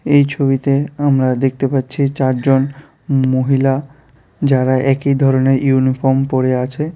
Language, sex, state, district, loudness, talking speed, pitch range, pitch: Bengali, female, Tripura, West Tripura, -15 LUFS, 110 wpm, 130-140 Hz, 135 Hz